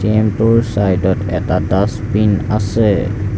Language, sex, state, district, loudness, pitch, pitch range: Assamese, male, Assam, Sonitpur, -15 LUFS, 105 Hz, 100-110 Hz